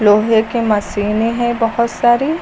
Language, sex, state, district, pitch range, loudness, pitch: Hindi, female, Uttar Pradesh, Lucknow, 215-240 Hz, -15 LUFS, 230 Hz